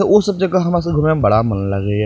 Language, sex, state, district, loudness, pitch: Maithili, male, Bihar, Purnia, -16 LUFS, 155 Hz